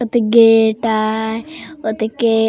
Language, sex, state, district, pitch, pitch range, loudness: Chhattisgarhi, female, Chhattisgarh, Raigarh, 225 Hz, 220-235 Hz, -15 LUFS